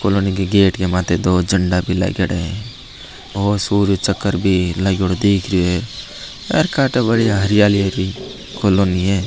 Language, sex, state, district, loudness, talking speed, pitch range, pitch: Marwari, male, Rajasthan, Nagaur, -17 LUFS, 155 wpm, 90-100 Hz, 95 Hz